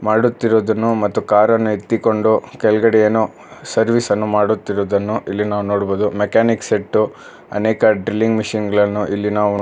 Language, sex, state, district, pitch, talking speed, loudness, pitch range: Kannada, male, Karnataka, Bangalore, 105 Hz, 125 wpm, -17 LUFS, 105-110 Hz